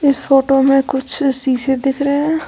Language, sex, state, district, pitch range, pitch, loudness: Hindi, female, Rajasthan, Jaipur, 265-280 Hz, 275 Hz, -15 LUFS